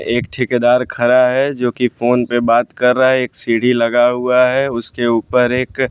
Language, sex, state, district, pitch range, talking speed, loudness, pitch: Hindi, male, Bihar, West Champaran, 120-125 Hz, 205 wpm, -15 LUFS, 125 Hz